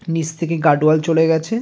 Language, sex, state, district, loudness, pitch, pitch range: Bengali, male, West Bengal, North 24 Parganas, -17 LUFS, 160 Hz, 155-165 Hz